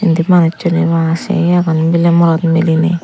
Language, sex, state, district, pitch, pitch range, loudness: Chakma, female, Tripura, Unakoti, 170 Hz, 165-170 Hz, -12 LUFS